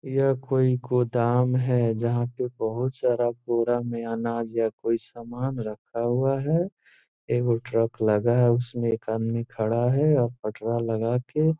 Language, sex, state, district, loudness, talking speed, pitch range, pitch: Hindi, male, Bihar, Gopalganj, -25 LUFS, 150 wpm, 115-125 Hz, 120 Hz